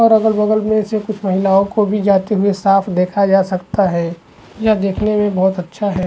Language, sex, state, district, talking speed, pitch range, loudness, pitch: Hindi, male, Chhattisgarh, Bastar, 225 wpm, 190-215 Hz, -15 LUFS, 200 Hz